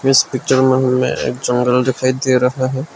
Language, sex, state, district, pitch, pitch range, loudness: Hindi, male, Arunachal Pradesh, Lower Dibang Valley, 130 Hz, 125-130 Hz, -15 LUFS